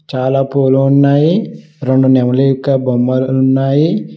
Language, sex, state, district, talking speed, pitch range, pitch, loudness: Telugu, male, Telangana, Mahabubabad, 115 wpm, 130-140 Hz, 135 Hz, -12 LUFS